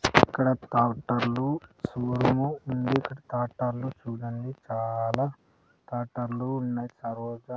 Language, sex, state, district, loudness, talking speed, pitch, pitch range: Telugu, male, Andhra Pradesh, Sri Satya Sai, -29 LUFS, 85 wpm, 125 Hz, 120-130 Hz